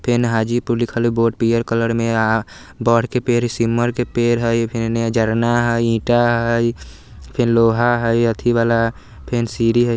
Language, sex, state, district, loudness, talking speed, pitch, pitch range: Bajjika, male, Bihar, Vaishali, -18 LUFS, 180 wpm, 115 Hz, 115-120 Hz